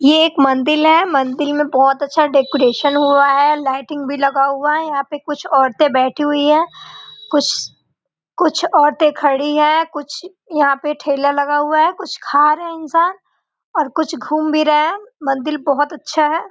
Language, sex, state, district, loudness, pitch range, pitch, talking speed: Hindi, female, Bihar, Gopalganj, -15 LUFS, 280-315 Hz, 295 Hz, 185 wpm